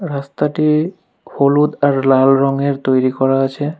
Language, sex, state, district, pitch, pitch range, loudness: Bengali, male, West Bengal, Alipurduar, 140 Hz, 135-150 Hz, -15 LUFS